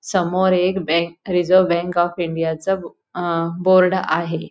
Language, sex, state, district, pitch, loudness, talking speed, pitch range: Marathi, female, Goa, North and South Goa, 175 Hz, -19 LUFS, 135 wpm, 170-185 Hz